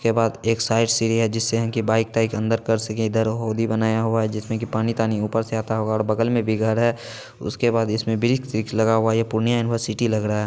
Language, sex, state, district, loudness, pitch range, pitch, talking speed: Hindi, male, Bihar, Purnia, -22 LUFS, 110-115 Hz, 115 Hz, 270 wpm